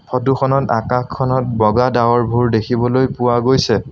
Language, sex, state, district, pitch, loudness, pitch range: Assamese, male, Assam, Sonitpur, 125 Hz, -15 LUFS, 120-130 Hz